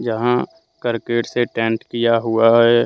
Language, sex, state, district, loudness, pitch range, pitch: Hindi, male, Jharkhand, Deoghar, -18 LUFS, 115-120 Hz, 115 Hz